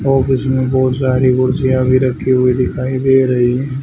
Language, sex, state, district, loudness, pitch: Hindi, male, Haryana, Charkhi Dadri, -14 LUFS, 130 Hz